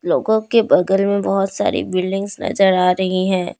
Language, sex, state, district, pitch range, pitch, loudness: Hindi, female, Assam, Kamrup Metropolitan, 185-200 Hz, 195 Hz, -17 LUFS